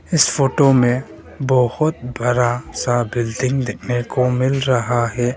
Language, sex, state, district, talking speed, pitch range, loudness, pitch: Hindi, male, Arunachal Pradesh, Longding, 135 wpm, 120-130 Hz, -18 LUFS, 125 Hz